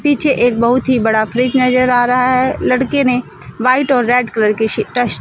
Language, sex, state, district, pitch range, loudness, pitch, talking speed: Hindi, female, Chandigarh, Chandigarh, 235-255 Hz, -14 LUFS, 250 Hz, 220 wpm